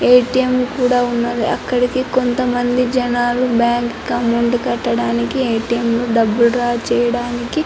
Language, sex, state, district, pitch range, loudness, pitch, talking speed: Telugu, female, Andhra Pradesh, Anantapur, 235-250 Hz, -16 LUFS, 240 Hz, 125 wpm